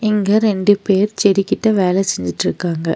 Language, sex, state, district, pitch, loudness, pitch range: Tamil, female, Tamil Nadu, Nilgiris, 200 Hz, -16 LUFS, 185-210 Hz